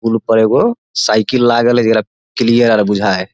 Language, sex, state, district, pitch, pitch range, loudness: Maithili, male, Bihar, Samastipur, 115 Hz, 105-120 Hz, -13 LUFS